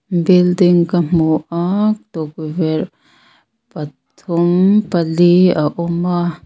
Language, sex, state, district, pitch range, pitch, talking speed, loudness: Mizo, female, Mizoram, Aizawl, 160-180 Hz, 175 Hz, 95 wpm, -15 LUFS